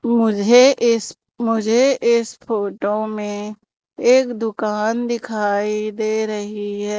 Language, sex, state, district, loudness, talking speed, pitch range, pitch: Hindi, female, Madhya Pradesh, Umaria, -18 LUFS, 105 wpm, 210-235 Hz, 220 Hz